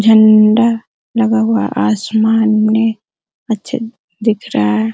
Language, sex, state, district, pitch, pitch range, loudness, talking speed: Hindi, female, Bihar, Araria, 220 Hz, 215-225 Hz, -13 LUFS, 120 wpm